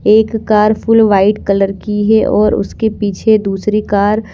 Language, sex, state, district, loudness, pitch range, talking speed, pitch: Hindi, female, Chandigarh, Chandigarh, -12 LUFS, 200-220 Hz, 180 wpm, 210 Hz